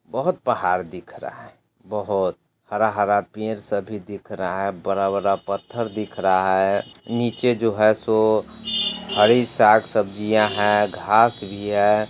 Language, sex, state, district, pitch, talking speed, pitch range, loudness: Hindi, male, Bihar, Sitamarhi, 105 Hz, 140 wpm, 100-115 Hz, -21 LUFS